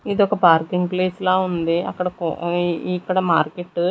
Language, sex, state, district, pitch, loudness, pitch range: Telugu, female, Andhra Pradesh, Sri Satya Sai, 180 Hz, -20 LUFS, 170-185 Hz